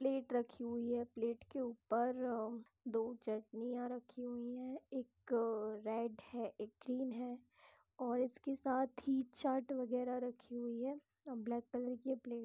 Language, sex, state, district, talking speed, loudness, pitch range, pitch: Hindi, female, Bihar, East Champaran, 165 wpm, -42 LUFS, 235-260 Hz, 245 Hz